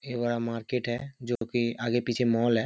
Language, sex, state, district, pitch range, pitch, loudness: Hindi, male, Bihar, Kishanganj, 115-120 Hz, 120 Hz, -29 LUFS